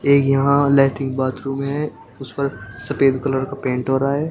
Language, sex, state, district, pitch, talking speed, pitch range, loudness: Hindi, male, Uttar Pradesh, Shamli, 135 Hz, 195 wpm, 130-140 Hz, -19 LUFS